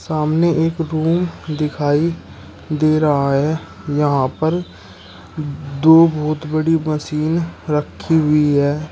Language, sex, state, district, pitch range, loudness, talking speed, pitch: Hindi, male, Uttar Pradesh, Shamli, 145-160 Hz, -17 LUFS, 110 wpm, 150 Hz